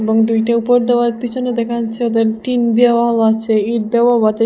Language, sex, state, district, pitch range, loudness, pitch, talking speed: Bengali, female, Assam, Hailakandi, 225-240 Hz, -15 LUFS, 235 Hz, 200 wpm